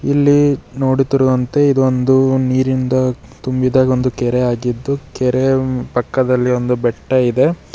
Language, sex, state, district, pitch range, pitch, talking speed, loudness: Kannada, male, Karnataka, Bidar, 125-135 Hz, 130 Hz, 100 wpm, -15 LUFS